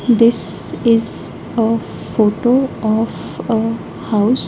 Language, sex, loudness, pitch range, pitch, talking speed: English, female, -17 LUFS, 220-235 Hz, 230 Hz, 95 wpm